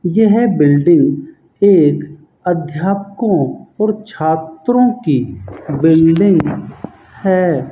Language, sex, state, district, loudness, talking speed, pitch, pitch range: Hindi, male, Rajasthan, Bikaner, -14 LUFS, 70 wpm, 170 Hz, 150-200 Hz